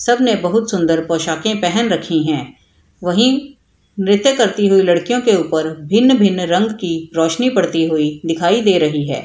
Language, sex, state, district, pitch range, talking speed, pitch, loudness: Hindi, female, Bihar, Madhepura, 165-225 Hz, 160 wpm, 180 Hz, -15 LUFS